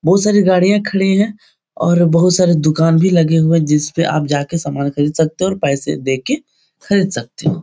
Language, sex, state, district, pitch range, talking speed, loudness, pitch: Hindi, male, Bihar, Supaul, 155-190 Hz, 195 wpm, -14 LUFS, 165 Hz